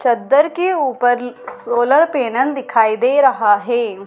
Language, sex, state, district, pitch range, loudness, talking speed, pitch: Hindi, female, Madhya Pradesh, Dhar, 240-275 Hz, -15 LUFS, 130 wpm, 250 Hz